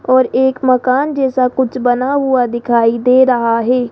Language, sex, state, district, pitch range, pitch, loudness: Hindi, female, Rajasthan, Jaipur, 245-260 Hz, 255 Hz, -13 LUFS